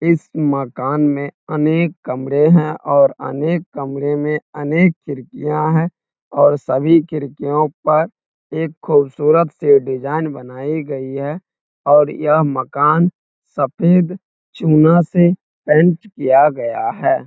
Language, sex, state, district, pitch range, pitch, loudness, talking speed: Hindi, male, Bihar, Muzaffarpur, 145-165 Hz, 155 Hz, -16 LUFS, 120 wpm